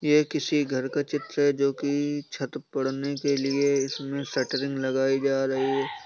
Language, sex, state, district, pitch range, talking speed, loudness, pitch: Hindi, male, Bihar, East Champaran, 135-145 Hz, 180 wpm, -26 LUFS, 140 Hz